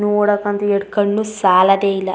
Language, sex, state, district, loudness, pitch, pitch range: Kannada, female, Karnataka, Chamarajanagar, -16 LUFS, 205 Hz, 195-205 Hz